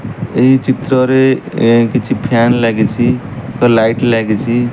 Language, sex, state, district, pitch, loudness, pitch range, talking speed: Odia, male, Odisha, Malkangiri, 120 Hz, -12 LUFS, 115-130 Hz, 100 wpm